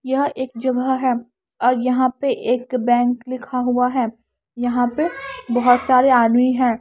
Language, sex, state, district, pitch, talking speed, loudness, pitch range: Hindi, female, Haryana, Charkhi Dadri, 250 Hz, 160 wpm, -19 LUFS, 245-260 Hz